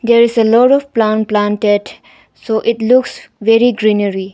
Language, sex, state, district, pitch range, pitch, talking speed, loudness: English, female, Arunachal Pradesh, Longding, 210-235 Hz, 225 Hz, 165 wpm, -13 LUFS